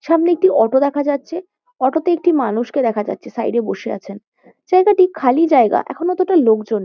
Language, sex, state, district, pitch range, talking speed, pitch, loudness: Bengali, female, West Bengal, Kolkata, 235-345 Hz, 185 wpm, 285 Hz, -16 LUFS